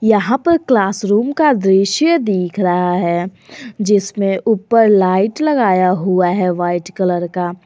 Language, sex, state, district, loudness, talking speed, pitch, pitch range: Hindi, female, Jharkhand, Garhwa, -15 LUFS, 135 wpm, 195 Hz, 180-230 Hz